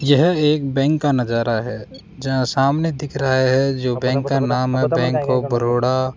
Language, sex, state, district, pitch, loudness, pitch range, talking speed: Hindi, male, Rajasthan, Jaipur, 130 Hz, -18 LUFS, 125-140 Hz, 195 wpm